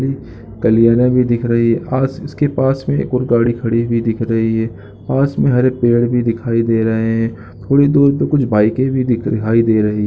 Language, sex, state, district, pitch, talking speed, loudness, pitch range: Hindi, male, Chhattisgarh, Raigarh, 115 Hz, 220 wpm, -15 LUFS, 115-130 Hz